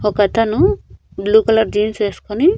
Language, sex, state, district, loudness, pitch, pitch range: Telugu, female, Andhra Pradesh, Annamaya, -16 LUFS, 220 Hz, 210-225 Hz